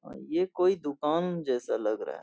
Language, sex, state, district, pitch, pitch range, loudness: Hindi, male, Bihar, Saharsa, 170 Hz, 145-185 Hz, -29 LUFS